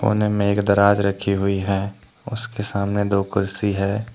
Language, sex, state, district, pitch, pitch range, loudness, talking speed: Hindi, male, Jharkhand, Deoghar, 100 Hz, 100-105 Hz, -21 LUFS, 175 wpm